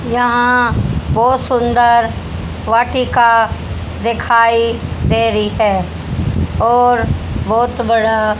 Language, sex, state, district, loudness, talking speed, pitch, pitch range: Hindi, female, Haryana, Jhajjar, -14 LUFS, 80 wpm, 235 Hz, 230-245 Hz